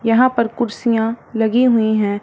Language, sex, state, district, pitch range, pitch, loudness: Hindi, female, Punjab, Fazilka, 220-240 Hz, 225 Hz, -17 LUFS